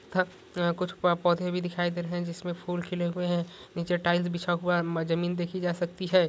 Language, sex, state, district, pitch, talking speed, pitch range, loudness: Hindi, male, Rajasthan, Nagaur, 175 Hz, 220 wpm, 175-180 Hz, -29 LUFS